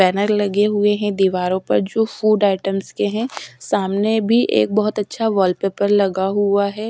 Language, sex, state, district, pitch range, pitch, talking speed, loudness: Hindi, female, Odisha, Sambalpur, 195-215 Hz, 205 Hz, 175 wpm, -18 LUFS